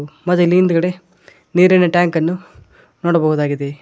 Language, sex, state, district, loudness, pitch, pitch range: Kannada, male, Karnataka, Koppal, -15 LUFS, 175 Hz, 155-180 Hz